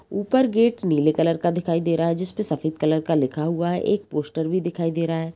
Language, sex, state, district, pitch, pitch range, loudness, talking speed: Hindi, female, Bihar, Jamui, 165 Hz, 160-180 Hz, -22 LUFS, 290 wpm